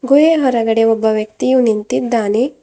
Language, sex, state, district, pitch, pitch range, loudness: Kannada, female, Karnataka, Bidar, 230 Hz, 220-260 Hz, -14 LUFS